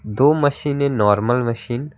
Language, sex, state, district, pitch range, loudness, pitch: Hindi, male, West Bengal, Alipurduar, 115-145 Hz, -18 LUFS, 125 Hz